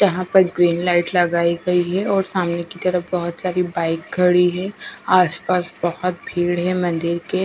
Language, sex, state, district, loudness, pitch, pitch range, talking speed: Hindi, female, Bihar, West Champaran, -19 LUFS, 180 Hz, 170-185 Hz, 175 wpm